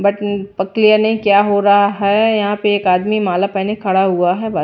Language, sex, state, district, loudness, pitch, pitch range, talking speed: Hindi, female, Bihar, Patna, -14 LUFS, 200 Hz, 195-210 Hz, 235 wpm